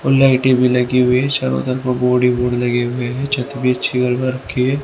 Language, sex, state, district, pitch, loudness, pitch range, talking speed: Hindi, male, Haryana, Rohtak, 125 Hz, -16 LUFS, 125-130 Hz, 235 wpm